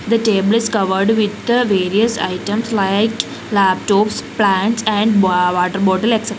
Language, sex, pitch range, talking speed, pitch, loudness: English, female, 195-225 Hz, 140 wpm, 210 Hz, -16 LUFS